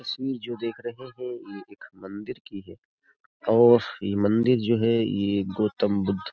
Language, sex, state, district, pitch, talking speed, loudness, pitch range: Hindi, male, Uttar Pradesh, Jyotiba Phule Nagar, 110 Hz, 180 wpm, -24 LUFS, 100-120 Hz